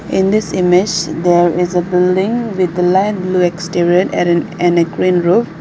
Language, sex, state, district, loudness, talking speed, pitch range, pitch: English, female, Arunachal Pradesh, Lower Dibang Valley, -14 LUFS, 180 wpm, 175-185 Hz, 180 Hz